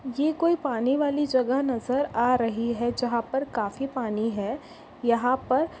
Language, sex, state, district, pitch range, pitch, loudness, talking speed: Hindi, female, Maharashtra, Pune, 235-275 Hz, 255 Hz, -26 LUFS, 165 wpm